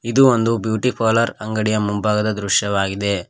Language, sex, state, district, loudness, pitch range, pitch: Kannada, male, Karnataka, Koppal, -18 LUFS, 100-115 Hz, 110 Hz